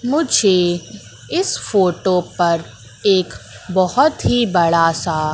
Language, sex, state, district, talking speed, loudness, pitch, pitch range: Hindi, female, Madhya Pradesh, Katni, 100 wpm, -17 LUFS, 180 Hz, 165-205 Hz